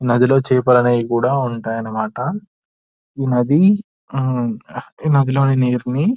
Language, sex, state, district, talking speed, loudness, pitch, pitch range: Telugu, male, Telangana, Nalgonda, 105 wpm, -17 LUFS, 125 Hz, 120-140 Hz